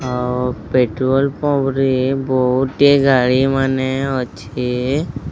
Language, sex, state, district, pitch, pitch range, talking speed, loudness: Odia, male, Odisha, Sambalpur, 130 Hz, 125-135 Hz, 90 wpm, -17 LUFS